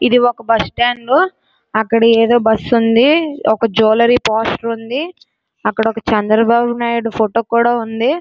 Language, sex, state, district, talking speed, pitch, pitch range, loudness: Telugu, female, Andhra Pradesh, Srikakulam, 145 wpm, 230 Hz, 225-240 Hz, -14 LUFS